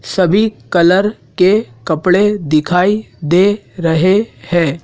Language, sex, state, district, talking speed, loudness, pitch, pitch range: Hindi, male, Madhya Pradesh, Dhar, 100 wpm, -13 LUFS, 185 Hz, 170-205 Hz